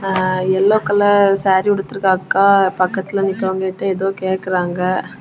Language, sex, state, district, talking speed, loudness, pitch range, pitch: Tamil, female, Tamil Nadu, Kanyakumari, 115 wpm, -16 LUFS, 185-195 Hz, 190 Hz